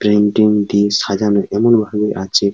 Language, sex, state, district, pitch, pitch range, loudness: Bengali, male, West Bengal, Paschim Medinipur, 105 Hz, 100-105 Hz, -14 LUFS